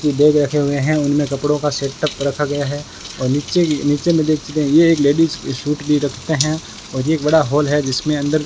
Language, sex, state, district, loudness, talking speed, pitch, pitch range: Hindi, male, Rajasthan, Bikaner, -17 LUFS, 255 wpm, 145 Hz, 140-155 Hz